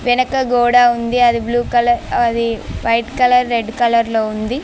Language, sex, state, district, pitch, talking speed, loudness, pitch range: Telugu, female, Telangana, Mahabubabad, 240 Hz, 155 wpm, -15 LUFS, 230-245 Hz